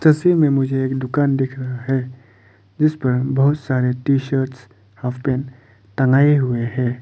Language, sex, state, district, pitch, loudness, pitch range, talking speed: Hindi, male, Arunachal Pradesh, Papum Pare, 130 Hz, -19 LUFS, 125-135 Hz, 160 wpm